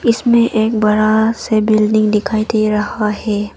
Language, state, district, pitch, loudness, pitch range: Hindi, Arunachal Pradesh, Papum Pare, 215 Hz, -14 LUFS, 210-225 Hz